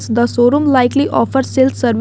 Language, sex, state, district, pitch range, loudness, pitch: English, female, Jharkhand, Garhwa, 240-270 Hz, -13 LUFS, 255 Hz